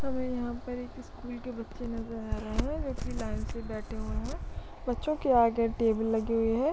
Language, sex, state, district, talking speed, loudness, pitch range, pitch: Hindi, female, Chhattisgarh, Korba, 225 wpm, -32 LUFS, 230-250 Hz, 240 Hz